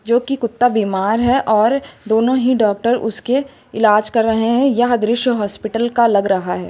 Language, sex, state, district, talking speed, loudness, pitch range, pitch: Hindi, female, Uttar Pradesh, Lucknow, 190 wpm, -16 LUFS, 215-245 Hz, 230 Hz